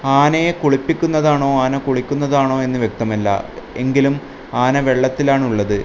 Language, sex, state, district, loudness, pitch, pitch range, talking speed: Malayalam, male, Kerala, Kasaragod, -17 LUFS, 135 Hz, 125-145 Hz, 90 wpm